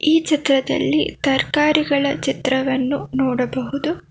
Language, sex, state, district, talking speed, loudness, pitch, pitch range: Kannada, female, Karnataka, Bangalore, 75 wpm, -19 LUFS, 280 Hz, 265-300 Hz